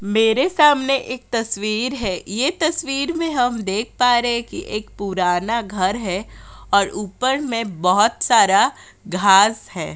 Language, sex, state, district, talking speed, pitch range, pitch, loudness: Hindi, female, Uttar Pradesh, Jyotiba Phule Nagar, 150 wpm, 200-255 Hz, 225 Hz, -19 LUFS